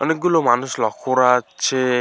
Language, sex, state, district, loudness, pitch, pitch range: Bengali, male, West Bengal, Alipurduar, -18 LUFS, 130 Hz, 125-140 Hz